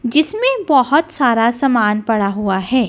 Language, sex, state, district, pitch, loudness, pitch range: Hindi, female, Punjab, Kapurthala, 250 Hz, -15 LUFS, 215-300 Hz